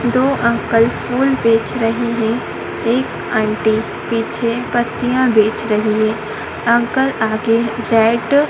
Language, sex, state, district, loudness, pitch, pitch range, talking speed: Hindi, female, Madhya Pradesh, Dhar, -16 LUFS, 230 Hz, 225-240 Hz, 120 wpm